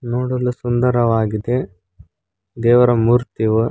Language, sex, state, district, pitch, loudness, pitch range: Kannada, male, Karnataka, Koppal, 120 Hz, -17 LUFS, 110-125 Hz